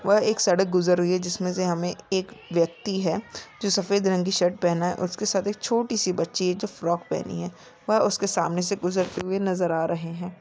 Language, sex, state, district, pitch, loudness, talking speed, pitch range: Hindi, female, Chhattisgarh, Sarguja, 180 Hz, -25 LUFS, 235 wpm, 175-200 Hz